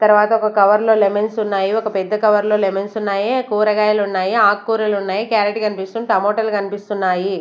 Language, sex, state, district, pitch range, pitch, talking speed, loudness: Telugu, female, Andhra Pradesh, Sri Satya Sai, 200-215 Hz, 210 Hz, 155 wpm, -17 LUFS